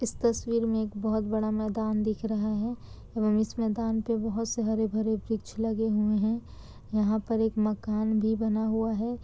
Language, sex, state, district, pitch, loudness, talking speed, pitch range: Hindi, female, Bihar, Kishanganj, 220 Hz, -29 LUFS, 195 wpm, 215-225 Hz